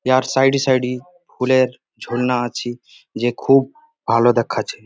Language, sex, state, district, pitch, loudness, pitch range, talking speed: Bengali, male, West Bengal, Jalpaiguri, 130 Hz, -18 LUFS, 125-135 Hz, 150 wpm